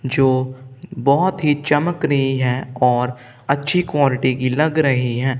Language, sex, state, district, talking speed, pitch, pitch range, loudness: Hindi, male, Punjab, Kapurthala, 145 wpm, 135 Hz, 125-145 Hz, -18 LUFS